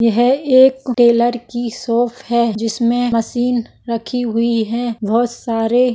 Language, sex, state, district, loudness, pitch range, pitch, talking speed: Hindi, female, Maharashtra, Solapur, -16 LUFS, 230-245 Hz, 235 Hz, 140 wpm